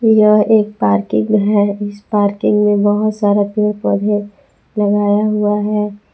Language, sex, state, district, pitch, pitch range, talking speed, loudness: Hindi, female, Jharkhand, Palamu, 210 Hz, 205-210 Hz, 135 wpm, -14 LUFS